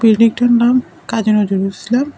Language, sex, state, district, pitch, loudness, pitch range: Bengali, male, Tripura, West Tripura, 230 Hz, -14 LUFS, 215-245 Hz